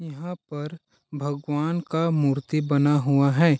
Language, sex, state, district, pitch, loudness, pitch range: Hindi, male, Chhattisgarh, Balrampur, 150 Hz, -24 LUFS, 145-165 Hz